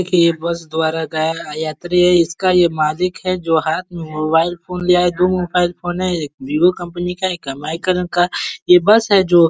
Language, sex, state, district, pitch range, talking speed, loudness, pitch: Hindi, male, Uttar Pradesh, Ghazipur, 160-180 Hz, 230 wpm, -17 LUFS, 175 Hz